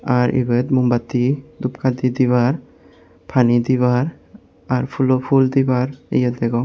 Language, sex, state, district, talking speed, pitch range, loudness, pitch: Chakma, male, Tripura, West Tripura, 125 wpm, 120-130 Hz, -18 LUFS, 125 Hz